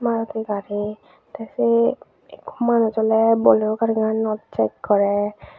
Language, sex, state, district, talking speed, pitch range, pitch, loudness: Chakma, female, Tripura, Unakoti, 105 wpm, 205-225 Hz, 220 Hz, -20 LUFS